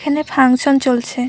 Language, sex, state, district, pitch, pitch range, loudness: Bengali, female, West Bengal, Purulia, 270 Hz, 250-290 Hz, -14 LUFS